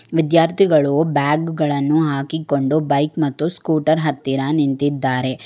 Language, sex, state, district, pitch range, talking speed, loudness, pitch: Kannada, female, Karnataka, Bangalore, 140-160 Hz, 100 wpm, -18 LUFS, 150 Hz